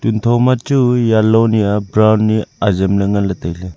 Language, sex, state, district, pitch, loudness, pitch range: Wancho, male, Arunachal Pradesh, Longding, 110 Hz, -14 LUFS, 100-115 Hz